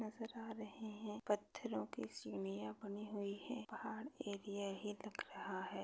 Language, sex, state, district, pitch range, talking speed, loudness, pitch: Hindi, female, Maharashtra, Pune, 200-220 Hz, 155 wpm, -47 LUFS, 210 Hz